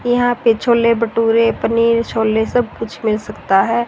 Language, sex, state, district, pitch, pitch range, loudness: Hindi, female, Haryana, Rohtak, 230 Hz, 220-235 Hz, -16 LUFS